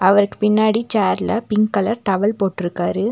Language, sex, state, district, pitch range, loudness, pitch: Tamil, female, Tamil Nadu, Nilgiris, 195-215 Hz, -18 LUFS, 210 Hz